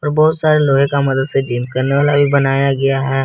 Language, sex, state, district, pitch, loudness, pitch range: Hindi, male, Jharkhand, Garhwa, 135 Hz, -14 LUFS, 135-145 Hz